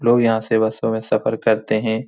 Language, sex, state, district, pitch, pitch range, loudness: Hindi, male, Bihar, Supaul, 110 Hz, 110-115 Hz, -19 LUFS